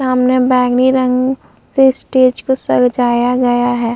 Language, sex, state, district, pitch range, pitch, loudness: Hindi, female, Uttar Pradesh, Muzaffarnagar, 245-260 Hz, 255 Hz, -13 LUFS